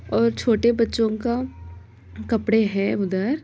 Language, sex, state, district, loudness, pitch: Bhojpuri, female, Bihar, Saran, -22 LUFS, 220 Hz